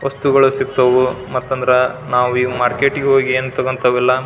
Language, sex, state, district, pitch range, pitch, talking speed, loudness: Kannada, male, Karnataka, Belgaum, 125-135 Hz, 130 Hz, 170 wpm, -15 LUFS